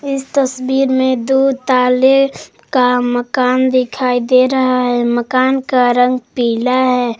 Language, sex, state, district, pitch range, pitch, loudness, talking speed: Hindi, female, Jharkhand, Garhwa, 250-265 Hz, 255 Hz, -14 LUFS, 135 wpm